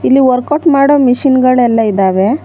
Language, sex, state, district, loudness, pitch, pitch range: Kannada, female, Karnataka, Bangalore, -10 LUFS, 255 Hz, 230-275 Hz